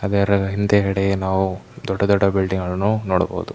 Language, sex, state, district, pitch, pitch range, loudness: Kannada, male, Karnataka, Mysore, 95 Hz, 95-100 Hz, -20 LUFS